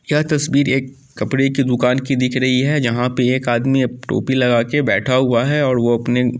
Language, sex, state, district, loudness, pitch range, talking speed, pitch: Angika, male, Bihar, Samastipur, -17 LUFS, 125-135 Hz, 235 wpm, 130 Hz